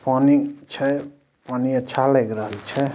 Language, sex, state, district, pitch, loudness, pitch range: Maithili, male, Bihar, Samastipur, 135 Hz, -21 LUFS, 125-140 Hz